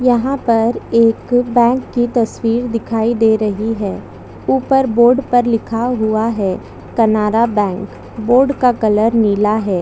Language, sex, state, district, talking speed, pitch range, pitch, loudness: Hindi, female, Chhattisgarh, Bastar, 140 wpm, 215-240 Hz, 230 Hz, -15 LUFS